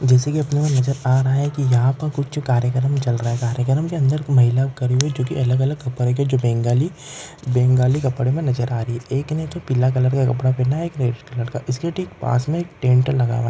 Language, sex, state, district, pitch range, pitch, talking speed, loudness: Marwari, male, Rajasthan, Nagaur, 125-145 Hz, 130 Hz, 245 wpm, -20 LUFS